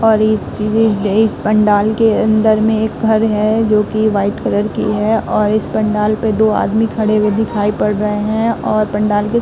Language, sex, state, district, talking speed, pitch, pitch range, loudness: Hindi, female, Uttar Pradesh, Muzaffarnagar, 195 wpm, 215 Hz, 210-220 Hz, -14 LUFS